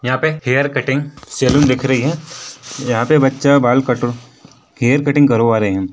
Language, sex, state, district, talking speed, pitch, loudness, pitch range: Hindi, male, Chhattisgarh, Korba, 180 wpm, 135 Hz, -15 LUFS, 125-145 Hz